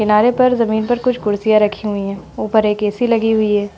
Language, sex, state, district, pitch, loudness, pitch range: Hindi, female, Uttar Pradesh, Budaun, 215 Hz, -16 LUFS, 210-230 Hz